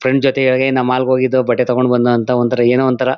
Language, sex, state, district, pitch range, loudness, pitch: Kannada, male, Karnataka, Mysore, 125-130 Hz, -14 LUFS, 130 Hz